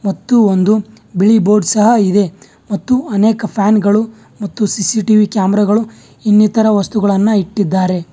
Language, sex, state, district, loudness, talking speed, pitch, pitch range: Kannada, male, Karnataka, Bangalore, -13 LUFS, 120 wpm, 210 Hz, 200-215 Hz